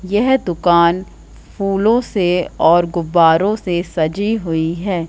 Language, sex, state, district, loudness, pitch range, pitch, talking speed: Hindi, female, Madhya Pradesh, Katni, -16 LUFS, 170-200 Hz, 180 Hz, 120 wpm